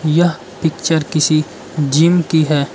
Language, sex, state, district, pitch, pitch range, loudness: Hindi, male, Arunachal Pradesh, Lower Dibang Valley, 160 Hz, 155-165 Hz, -15 LUFS